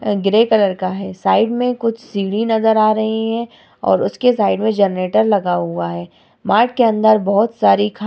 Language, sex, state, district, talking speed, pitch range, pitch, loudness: Hindi, female, Bihar, Vaishali, 200 wpm, 195-225 Hz, 215 Hz, -16 LUFS